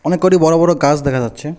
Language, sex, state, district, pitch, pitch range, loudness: Bengali, male, West Bengal, Alipurduar, 160 Hz, 140-175 Hz, -13 LUFS